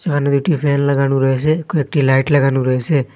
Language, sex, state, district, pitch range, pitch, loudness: Bengali, male, Assam, Hailakandi, 135-150 Hz, 140 Hz, -15 LUFS